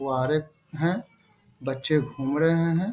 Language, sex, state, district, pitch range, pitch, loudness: Hindi, male, Bihar, Bhagalpur, 140-165 Hz, 155 Hz, -26 LUFS